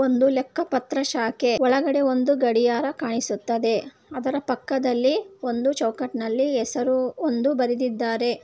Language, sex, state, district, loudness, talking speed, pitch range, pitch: Kannada, female, Karnataka, Bellary, -23 LUFS, 105 wpm, 240-275 Hz, 255 Hz